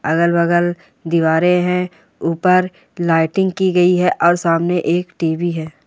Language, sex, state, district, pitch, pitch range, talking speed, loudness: Hindi, female, Rajasthan, Churu, 175 Hz, 165-180 Hz, 135 wpm, -16 LUFS